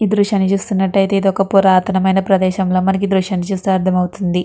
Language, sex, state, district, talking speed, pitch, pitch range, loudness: Telugu, female, Andhra Pradesh, Guntur, 175 wpm, 190 Hz, 185-195 Hz, -15 LUFS